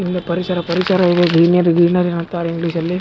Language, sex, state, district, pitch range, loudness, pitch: Kannada, male, Karnataka, Raichur, 170-180 Hz, -15 LUFS, 175 Hz